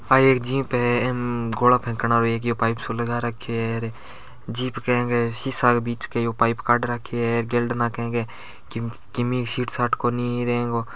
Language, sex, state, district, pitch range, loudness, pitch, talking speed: Marwari, male, Rajasthan, Churu, 115-120 Hz, -23 LUFS, 120 Hz, 215 wpm